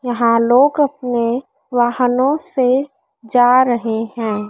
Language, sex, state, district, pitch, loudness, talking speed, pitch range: Hindi, female, Madhya Pradesh, Dhar, 245 Hz, -16 LUFS, 105 wpm, 235-260 Hz